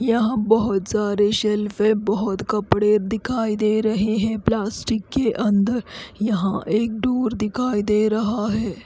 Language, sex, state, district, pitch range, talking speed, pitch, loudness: Hindi, female, Odisha, Khordha, 210-225 Hz, 140 wpm, 215 Hz, -21 LUFS